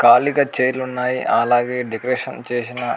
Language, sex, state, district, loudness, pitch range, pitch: Telugu, male, Andhra Pradesh, Anantapur, -19 LUFS, 120-130 Hz, 125 Hz